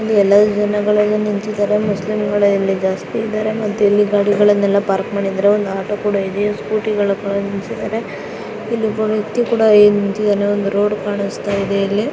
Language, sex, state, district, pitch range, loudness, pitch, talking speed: Kannada, female, Karnataka, Raichur, 200-210 Hz, -16 LUFS, 205 Hz, 145 wpm